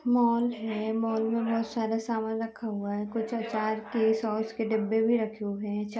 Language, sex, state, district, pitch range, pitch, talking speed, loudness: Hindi, female, Uttar Pradesh, Varanasi, 215-230 Hz, 225 Hz, 210 wpm, -29 LUFS